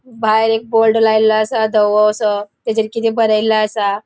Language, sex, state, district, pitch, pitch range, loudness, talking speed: Konkani, female, Goa, North and South Goa, 220 Hz, 215-225 Hz, -14 LUFS, 150 wpm